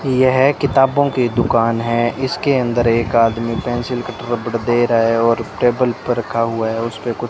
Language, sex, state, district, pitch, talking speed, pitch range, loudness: Hindi, male, Rajasthan, Bikaner, 120 Hz, 195 wpm, 115-125 Hz, -17 LUFS